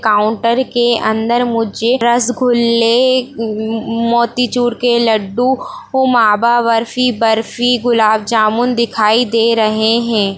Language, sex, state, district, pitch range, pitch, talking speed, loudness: Hindi, female, Bihar, Darbhanga, 220-245 Hz, 235 Hz, 100 wpm, -13 LUFS